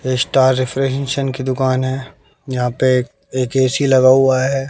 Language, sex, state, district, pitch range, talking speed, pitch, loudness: Hindi, male, Bihar, West Champaran, 130-135 Hz, 165 wpm, 130 Hz, -16 LUFS